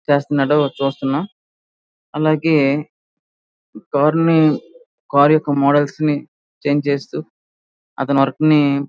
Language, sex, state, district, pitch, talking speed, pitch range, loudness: Telugu, male, Andhra Pradesh, Srikakulam, 145 Hz, 100 wpm, 140-155 Hz, -17 LUFS